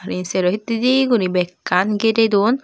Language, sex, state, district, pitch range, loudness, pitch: Chakma, female, Tripura, Dhalai, 180-235 Hz, -18 LUFS, 210 Hz